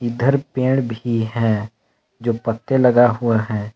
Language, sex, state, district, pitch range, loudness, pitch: Hindi, male, Jharkhand, Palamu, 110-125 Hz, -19 LUFS, 115 Hz